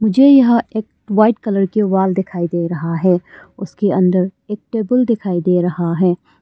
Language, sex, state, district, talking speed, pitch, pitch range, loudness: Hindi, female, Arunachal Pradesh, Longding, 175 wpm, 190 Hz, 180-215 Hz, -16 LUFS